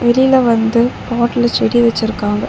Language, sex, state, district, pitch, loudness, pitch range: Tamil, female, Tamil Nadu, Chennai, 235 Hz, -14 LUFS, 225-240 Hz